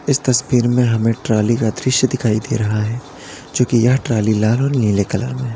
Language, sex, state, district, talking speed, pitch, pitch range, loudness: Hindi, male, Uttar Pradesh, Lalitpur, 215 wpm, 120 Hz, 110-130 Hz, -17 LUFS